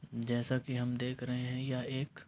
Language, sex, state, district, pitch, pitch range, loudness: Hindi, male, Uttar Pradesh, Varanasi, 125 Hz, 125-130 Hz, -36 LUFS